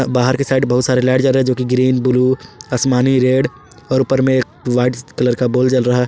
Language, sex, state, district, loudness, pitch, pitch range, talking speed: Hindi, male, Jharkhand, Ranchi, -15 LUFS, 130 Hz, 125-130 Hz, 255 wpm